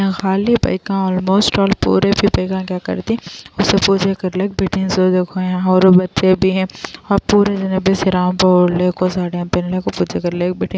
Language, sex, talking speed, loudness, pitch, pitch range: Urdu, female, 150 wpm, -16 LUFS, 190 Hz, 185-195 Hz